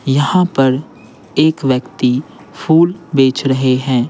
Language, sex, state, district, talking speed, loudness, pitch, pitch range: Hindi, male, Bihar, Patna, 115 wpm, -14 LUFS, 135 Hz, 130-155 Hz